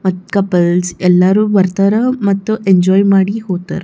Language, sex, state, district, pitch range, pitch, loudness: Kannada, female, Karnataka, Bijapur, 180-200 Hz, 195 Hz, -13 LUFS